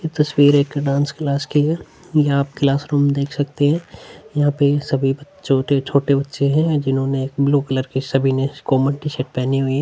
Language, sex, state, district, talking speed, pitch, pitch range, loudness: Hindi, male, Chhattisgarh, Sukma, 195 wpm, 140 Hz, 135-145 Hz, -19 LUFS